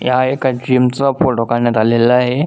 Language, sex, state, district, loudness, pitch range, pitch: Marathi, male, Maharashtra, Solapur, -14 LUFS, 120-130 Hz, 125 Hz